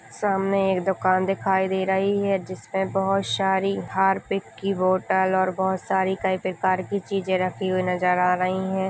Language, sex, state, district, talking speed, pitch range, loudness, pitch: Hindi, female, Chhattisgarh, Sarguja, 175 wpm, 185-195 Hz, -23 LUFS, 190 Hz